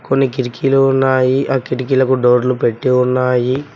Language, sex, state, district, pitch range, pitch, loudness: Telugu, male, Telangana, Mahabubabad, 125-135 Hz, 130 Hz, -14 LUFS